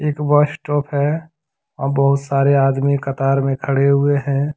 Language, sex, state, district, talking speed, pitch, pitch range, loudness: Hindi, male, Jharkhand, Deoghar, 155 wpm, 140 Hz, 140-145 Hz, -17 LUFS